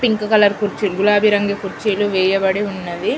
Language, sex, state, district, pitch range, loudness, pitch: Telugu, female, Telangana, Karimnagar, 195-210 Hz, -17 LUFS, 205 Hz